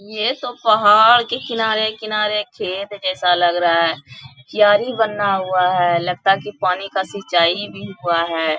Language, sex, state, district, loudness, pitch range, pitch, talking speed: Hindi, female, Bihar, Bhagalpur, -17 LUFS, 175-215 Hz, 195 Hz, 160 wpm